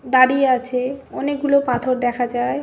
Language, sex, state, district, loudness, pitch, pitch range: Bengali, female, West Bengal, Paschim Medinipur, -19 LUFS, 255 Hz, 245-275 Hz